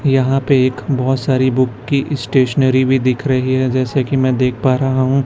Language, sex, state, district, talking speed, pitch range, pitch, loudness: Hindi, male, Chhattisgarh, Raipur, 215 wpm, 130-135 Hz, 130 Hz, -15 LUFS